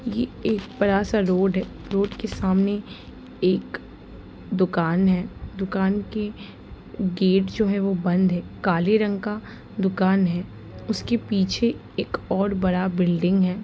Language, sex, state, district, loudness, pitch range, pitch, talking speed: Hindi, female, Bihar, Sitamarhi, -23 LUFS, 185-210 Hz, 195 Hz, 140 wpm